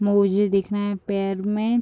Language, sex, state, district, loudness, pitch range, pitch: Hindi, female, Bihar, Purnia, -22 LUFS, 195-205 Hz, 205 Hz